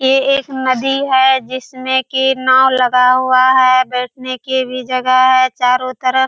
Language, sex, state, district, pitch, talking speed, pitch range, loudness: Hindi, female, Bihar, Purnia, 255 Hz, 170 wpm, 255-265 Hz, -13 LUFS